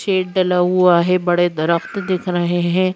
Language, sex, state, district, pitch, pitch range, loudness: Hindi, female, Madhya Pradesh, Bhopal, 180 Hz, 175-185 Hz, -17 LUFS